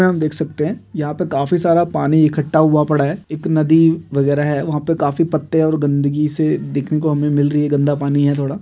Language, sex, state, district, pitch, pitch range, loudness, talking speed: Hindi, male, Chhattisgarh, Rajnandgaon, 155 Hz, 145-160 Hz, -16 LUFS, 235 wpm